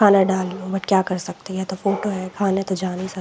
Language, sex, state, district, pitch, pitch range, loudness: Hindi, female, Jharkhand, Sahebganj, 190 Hz, 185-195 Hz, -22 LUFS